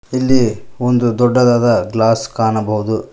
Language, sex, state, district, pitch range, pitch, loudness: Kannada, male, Karnataka, Koppal, 110-125 Hz, 120 Hz, -15 LUFS